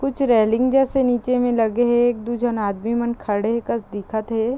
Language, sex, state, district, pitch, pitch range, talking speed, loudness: Chhattisgarhi, female, Chhattisgarh, Raigarh, 235 Hz, 220-245 Hz, 210 wpm, -20 LUFS